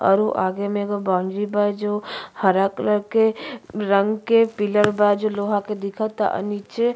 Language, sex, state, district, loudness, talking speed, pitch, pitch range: Bhojpuri, female, Uttar Pradesh, Gorakhpur, -21 LUFS, 180 wpm, 205 Hz, 200-215 Hz